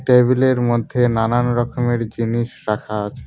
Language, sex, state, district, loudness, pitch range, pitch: Bengali, male, West Bengal, Cooch Behar, -18 LUFS, 115-125 Hz, 120 Hz